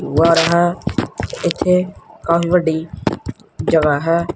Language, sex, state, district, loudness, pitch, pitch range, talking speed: Punjabi, male, Punjab, Kapurthala, -17 LUFS, 170 Hz, 160-175 Hz, 95 wpm